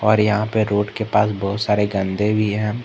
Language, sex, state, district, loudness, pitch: Hindi, male, Jharkhand, Garhwa, -19 LUFS, 105 Hz